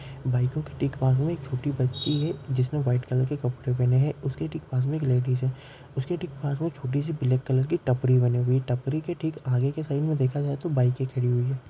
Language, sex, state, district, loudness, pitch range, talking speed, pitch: Marwari, male, Rajasthan, Nagaur, -26 LUFS, 130-150 Hz, 250 wpm, 135 Hz